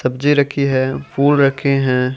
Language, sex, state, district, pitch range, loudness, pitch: Hindi, male, Rajasthan, Bikaner, 130-145 Hz, -16 LUFS, 140 Hz